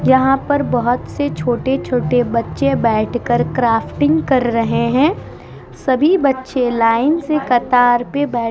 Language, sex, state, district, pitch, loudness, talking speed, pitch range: Hindi, female, Uttar Pradesh, Muzaffarnagar, 245 Hz, -16 LUFS, 140 wpm, 235-275 Hz